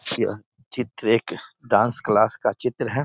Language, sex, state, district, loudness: Hindi, male, Bihar, East Champaran, -22 LUFS